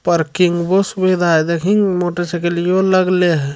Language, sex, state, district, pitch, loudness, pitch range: Hindi, male, Bihar, Jamui, 175 Hz, -15 LUFS, 170-185 Hz